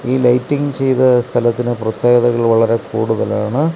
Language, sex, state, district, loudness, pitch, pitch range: Malayalam, male, Kerala, Kasaragod, -15 LUFS, 120 Hz, 115-130 Hz